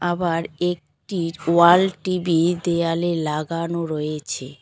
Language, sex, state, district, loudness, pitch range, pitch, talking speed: Bengali, female, West Bengal, Cooch Behar, -21 LUFS, 160-175 Hz, 170 Hz, 90 wpm